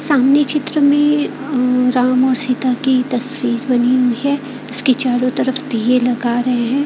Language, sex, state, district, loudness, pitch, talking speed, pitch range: Hindi, female, Bihar, Katihar, -15 LUFS, 255 Hz, 155 wpm, 250-275 Hz